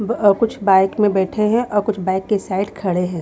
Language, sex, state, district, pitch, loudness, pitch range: Hindi, female, Haryana, Rohtak, 200 Hz, -18 LUFS, 190-210 Hz